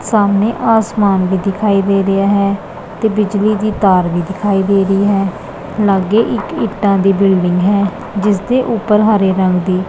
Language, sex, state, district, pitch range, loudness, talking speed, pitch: Punjabi, female, Punjab, Pathankot, 195-210 Hz, -13 LUFS, 170 wpm, 200 Hz